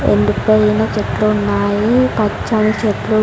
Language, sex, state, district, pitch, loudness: Telugu, female, Andhra Pradesh, Sri Satya Sai, 205 Hz, -15 LUFS